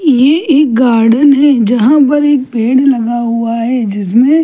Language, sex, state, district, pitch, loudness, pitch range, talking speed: Hindi, female, Delhi, New Delhi, 255 Hz, -10 LUFS, 230-290 Hz, 175 wpm